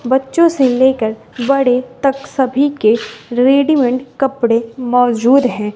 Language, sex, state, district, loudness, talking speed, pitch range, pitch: Hindi, female, Bihar, West Champaran, -14 LUFS, 125 wpm, 245-275 Hz, 255 Hz